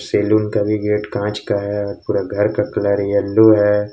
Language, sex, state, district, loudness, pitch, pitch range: Hindi, male, Jharkhand, Ranchi, -17 LUFS, 105 Hz, 100-105 Hz